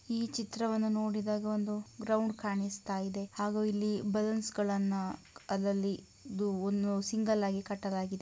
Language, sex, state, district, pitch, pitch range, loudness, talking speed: Kannada, female, Karnataka, Mysore, 205 Hz, 200-215 Hz, -34 LUFS, 115 wpm